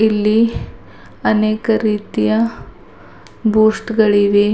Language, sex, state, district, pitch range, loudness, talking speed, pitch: Kannada, female, Karnataka, Bidar, 210-220 Hz, -15 LUFS, 65 wpm, 215 Hz